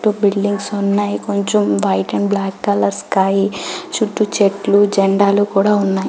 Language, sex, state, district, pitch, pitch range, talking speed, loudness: Telugu, female, Telangana, Karimnagar, 200 Hz, 195-205 Hz, 140 wpm, -16 LUFS